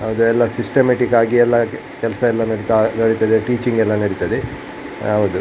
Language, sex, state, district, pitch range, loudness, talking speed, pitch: Kannada, male, Karnataka, Dakshina Kannada, 110-120 Hz, -17 LUFS, 145 wpm, 115 Hz